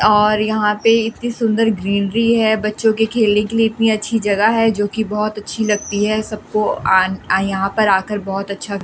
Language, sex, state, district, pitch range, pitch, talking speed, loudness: Hindi, female, Delhi, New Delhi, 205-225 Hz, 215 Hz, 205 wpm, -17 LUFS